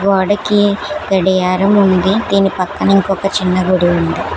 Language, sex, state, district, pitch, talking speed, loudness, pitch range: Telugu, female, Telangana, Hyderabad, 195 Hz, 125 wpm, -13 LUFS, 185-200 Hz